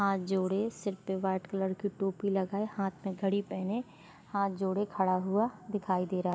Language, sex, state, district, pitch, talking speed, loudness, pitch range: Hindi, female, Jharkhand, Sahebganj, 195 Hz, 200 wpm, -33 LUFS, 190-200 Hz